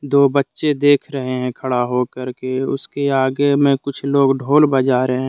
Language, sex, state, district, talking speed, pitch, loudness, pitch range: Hindi, male, Jharkhand, Deoghar, 195 wpm, 135 Hz, -17 LUFS, 130-140 Hz